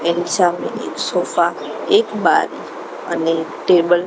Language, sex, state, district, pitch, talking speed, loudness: Gujarati, female, Gujarat, Gandhinagar, 175 Hz, 130 wpm, -18 LUFS